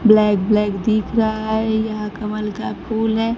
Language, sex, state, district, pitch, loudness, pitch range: Hindi, female, Bihar, Kaimur, 215 Hz, -19 LUFS, 210-220 Hz